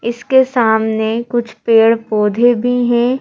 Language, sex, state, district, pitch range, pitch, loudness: Hindi, female, Madhya Pradesh, Bhopal, 225-245 Hz, 235 Hz, -14 LUFS